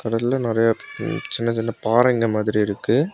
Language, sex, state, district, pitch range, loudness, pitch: Tamil, male, Tamil Nadu, Kanyakumari, 110-120 Hz, -21 LUFS, 115 Hz